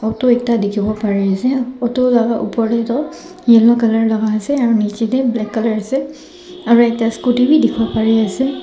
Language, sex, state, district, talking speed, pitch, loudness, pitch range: Nagamese, male, Nagaland, Dimapur, 165 wpm, 235 Hz, -15 LUFS, 225-255 Hz